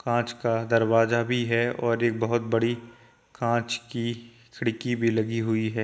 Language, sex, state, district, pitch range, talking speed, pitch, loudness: Hindi, male, Uttar Pradesh, Jyotiba Phule Nagar, 115-120 Hz, 165 wpm, 115 Hz, -26 LUFS